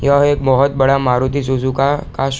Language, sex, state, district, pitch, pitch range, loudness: Hindi, male, Bihar, East Champaran, 135 Hz, 130-140 Hz, -15 LUFS